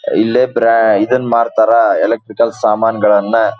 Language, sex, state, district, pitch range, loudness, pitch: Kannada, male, Karnataka, Dharwad, 110-115 Hz, -12 LUFS, 115 Hz